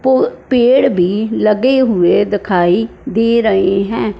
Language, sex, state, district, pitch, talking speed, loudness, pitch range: Hindi, female, Punjab, Fazilka, 215 Hz, 130 wpm, -13 LUFS, 195-245 Hz